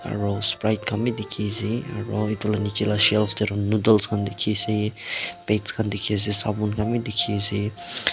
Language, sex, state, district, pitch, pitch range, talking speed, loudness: Nagamese, male, Nagaland, Dimapur, 105 Hz, 105-110 Hz, 185 wpm, -23 LUFS